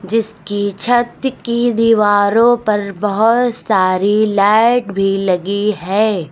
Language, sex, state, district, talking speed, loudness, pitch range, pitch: Hindi, female, Uttar Pradesh, Lucknow, 105 wpm, -14 LUFS, 200-230 Hz, 210 Hz